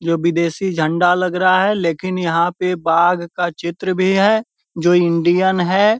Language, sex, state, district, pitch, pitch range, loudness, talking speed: Hindi, male, Bihar, Purnia, 175 Hz, 170-185 Hz, -16 LUFS, 170 wpm